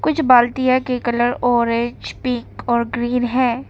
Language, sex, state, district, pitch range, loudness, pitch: Hindi, female, Arunachal Pradesh, Papum Pare, 240-255 Hz, -18 LUFS, 245 Hz